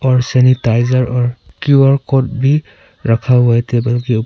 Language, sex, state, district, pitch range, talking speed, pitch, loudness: Hindi, male, Arunachal Pradesh, Papum Pare, 120-130 Hz, 170 wpm, 125 Hz, -13 LUFS